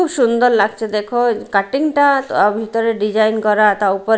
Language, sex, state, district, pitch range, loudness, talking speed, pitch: Bengali, female, Odisha, Malkangiri, 210-240 Hz, -15 LUFS, 145 wpm, 220 Hz